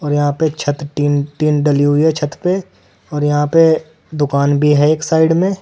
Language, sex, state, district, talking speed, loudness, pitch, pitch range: Hindi, male, Uttar Pradesh, Saharanpur, 225 wpm, -15 LUFS, 150 Hz, 145-160 Hz